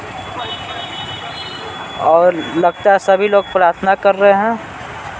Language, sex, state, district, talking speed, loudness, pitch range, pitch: Hindi, male, Bihar, Patna, 105 wpm, -15 LUFS, 175-200 Hz, 195 Hz